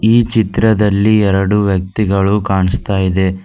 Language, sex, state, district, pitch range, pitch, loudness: Kannada, female, Karnataka, Bidar, 95-110 Hz, 100 Hz, -13 LUFS